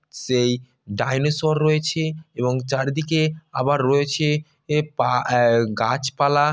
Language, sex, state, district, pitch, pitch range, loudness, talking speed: Bengali, male, West Bengal, North 24 Parganas, 140 Hz, 125-155 Hz, -21 LUFS, 100 wpm